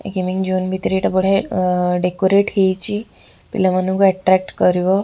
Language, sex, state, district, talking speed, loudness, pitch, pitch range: Odia, female, Odisha, Khordha, 155 wpm, -17 LUFS, 190 Hz, 185-195 Hz